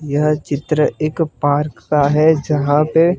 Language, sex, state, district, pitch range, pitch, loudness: Hindi, male, Gujarat, Gandhinagar, 145-155 Hz, 150 Hz, -16 LUFS